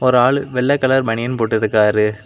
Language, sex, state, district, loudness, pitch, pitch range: Tamil, male, Tamil Nadu, Kanyakumari, -16 LUFS, 125 Hz, 110-130 Hz